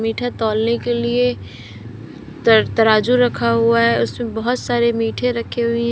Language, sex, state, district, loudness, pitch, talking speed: Hindi, female, Uttar Pradesh, Lalitpur, -17 LUFS, 225 Hz, 150 wpm